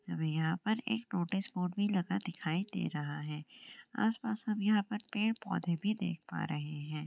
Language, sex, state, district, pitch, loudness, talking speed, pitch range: Hindi, female, Maharashtra, Aurangabad, 190 Hz, -36 LUFS, 195 wpm, 160-215 Hz